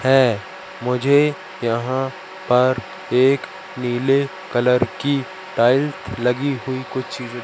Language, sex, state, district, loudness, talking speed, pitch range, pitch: Hindi, male, Madhya Pradesh, Katni, -20 LUFS, 105 wpm, 125-140 Hz, 130 Hz